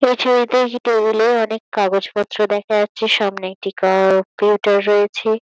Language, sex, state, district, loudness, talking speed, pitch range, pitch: Bengali, female, West Bengal, Kolkata, -17 LUFS, 155 wpm, 200-225 Hz, 210 Hz